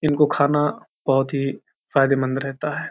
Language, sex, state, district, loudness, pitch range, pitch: Hindi, male, Uttar Pradesh, Hamirpur, -21 LUFS, 135-150 Hz, 140 Hz